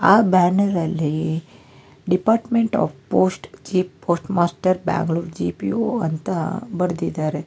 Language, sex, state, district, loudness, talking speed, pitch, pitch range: Kannada, male, Karnataka, Bangalore, -21 LUFS, 120 wpm, 175 Hz, 160-195 Hz